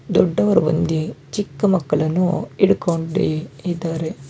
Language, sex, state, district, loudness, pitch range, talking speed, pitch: Kannada, male, Karnataka, Bangalore, -20 LUFS, 155-185 Hz, 85 wpm, 165 Hz